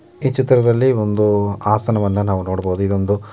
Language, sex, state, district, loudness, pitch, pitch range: Kannada, male, Karnataka, Mysore, -17 LUFS, 105 Hz, 100-120 Hz